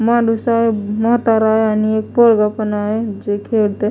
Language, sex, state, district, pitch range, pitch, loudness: Marathi, female, Maharashtra, Mumbai Suburban, 210-230 Hz, 220 Hz, -15 LUFS